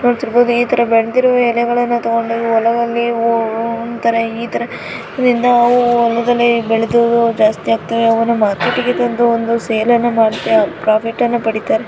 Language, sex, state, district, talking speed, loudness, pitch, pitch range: Kannada, female, Karnataka, Dharwad, 145 wpm, -14 LUFS, 235 Hz, 230-240 Hz